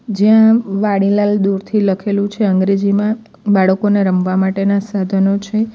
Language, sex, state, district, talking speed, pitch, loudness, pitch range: Gujarati, female, Gujarat, Valsad, 115 wpm, 200 Hz, -14 LUFS, 195-210 Hz